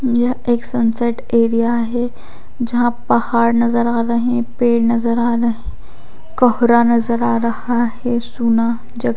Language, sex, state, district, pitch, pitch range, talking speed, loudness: Hindi, female, Odisha, Khordha, 235 Hz, 235-240 Hz, 150 wpm, -16 LUFS